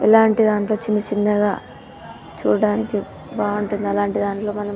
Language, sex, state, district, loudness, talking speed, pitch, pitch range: Telugu, female, Telangana, Nalgonda, -20 LUFS, 125 wpm, 210 Hz, 205-215 Hz